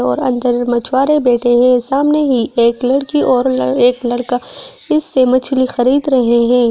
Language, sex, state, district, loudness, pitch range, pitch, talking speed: Hindi, female, Delhi, New Delhi, -13 LUFS, 240-270 Hz, 250 Hz, 150 wpm